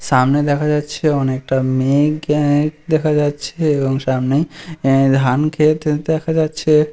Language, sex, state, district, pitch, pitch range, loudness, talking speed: Bengali, male, West Bengal, Malda, 150 Hz, 135-155 Hz, -16 LUFS, 110 wpm